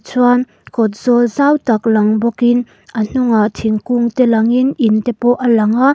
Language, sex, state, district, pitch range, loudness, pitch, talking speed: Mizo, female, Mizoram, Aizawl, 220-245 Hz, -14 LUFS, 240 Hz, 200 wpm